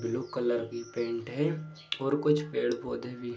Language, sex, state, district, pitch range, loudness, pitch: Hindi, male, Bihar, Jahanabad, 120-150 Hz, -31 LUFS, 125 Hz